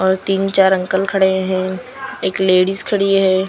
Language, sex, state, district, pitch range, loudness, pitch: Hindi, female, Maharashtra, Washim, 190-195 Hz, -16 LUFS, 190 Hz